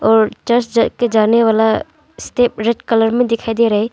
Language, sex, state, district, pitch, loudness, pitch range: Hindi, female, Arunachal Pradesh, Longding, 230 Hz, -15 LUFS, 220-235 Hz